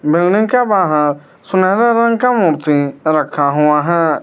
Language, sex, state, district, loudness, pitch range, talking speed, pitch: Hindi, male, Arunachal Pradesh, Lower Dibang Valley, -13 LUFS, 150-200 Hz, 140 wpm, 165 Hz